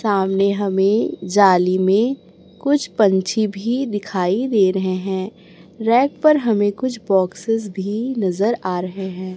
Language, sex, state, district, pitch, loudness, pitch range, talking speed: Hindi, male, Chhattisgarh, Raipur, 200 Hz, -19 LUFS, 185-225 Hz, 135 wpm